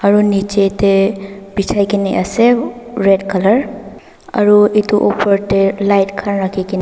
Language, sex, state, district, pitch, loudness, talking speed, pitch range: Nagamese, female, Nagaland, Dimapur, 200 Hz, -14 LUFS, 130 wpm, 195-205 Hz